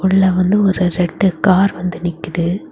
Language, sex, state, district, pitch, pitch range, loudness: Tamil, female, Tamil Nadu, Kanyakumari, 185 Hz, 175-190 Hz, -15 LUFS